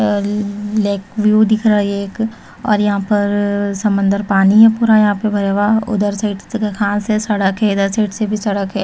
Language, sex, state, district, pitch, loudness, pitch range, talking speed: Hindi, female, Chhattisgarh, Raipur, 205 Hz, -15 LUFS, 200-215 Hz, 210 wpm